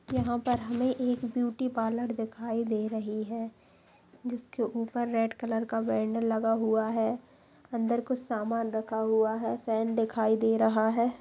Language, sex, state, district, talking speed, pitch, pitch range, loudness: Hindi, female, Bihar, Lakhisarai, 160 wpm, 225 Hz, 220-240 Hz, -30 LUFS